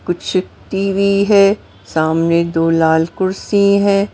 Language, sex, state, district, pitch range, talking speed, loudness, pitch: Hindi, female, Maharashtra, Mumbai Suburban, 165-200 Hz, 115 wpm, -15 LUFS, 190 Hz